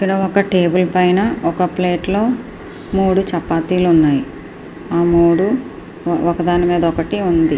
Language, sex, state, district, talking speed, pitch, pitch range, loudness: Telugu, female, Andhra Pradesh, Srikakulam, 110 wpm, 180 Hz, 170-195 Hz, -16 LUFS